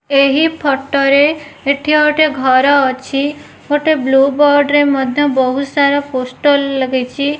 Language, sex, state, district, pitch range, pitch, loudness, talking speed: Odia, female, Odisha, Nuapada, 270-290 Hz, 280 Hz, -13 LUFS, 130 wpm